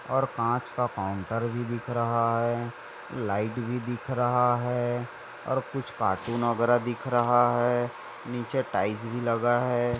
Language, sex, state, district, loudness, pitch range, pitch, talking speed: Hindi, male, Maharashtra, Dhule, -28 LUFS, 115-120 Hz, 120 Hz, 150 wpm